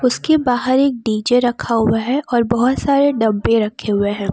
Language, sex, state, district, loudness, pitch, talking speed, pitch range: Hindi, female, Jharkhand, Palamu, -16 LUFS, 240 Hz, 195 wpm, 220-255 Hz